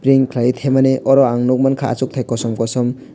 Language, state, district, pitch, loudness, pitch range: Kokborok, Tripura, West Tripura, 130 Hz, -16 LUFS, 120-135 Hz